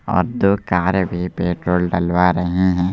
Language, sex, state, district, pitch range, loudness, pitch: Hindi, male, Madhya Pradesh, Bhopal, 90-95 Hz, -18 LUFS, 90 Hz